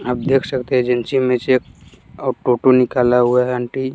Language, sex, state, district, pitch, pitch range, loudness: Hindi, male, Bihar, West Champaran, 125 Hz, 125-130 Hz, -17 LUFS